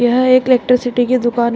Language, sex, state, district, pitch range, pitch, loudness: Hindi, female, Uttar Pradesh, Shamli, 240-255 Hz, 245 Hz, -13 LUFS